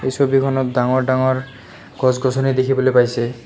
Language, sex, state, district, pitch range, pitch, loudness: Assamese, male, Assam, Kamrup Metropolitan, 125-135 Hz, 130 Hz, -17 LUFS